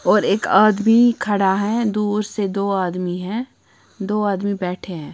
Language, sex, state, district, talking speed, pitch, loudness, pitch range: Hindi, female, Punjab, Kapurthala, 165 wpm, 205 Hz, -19 LUFS, 190-215 Hz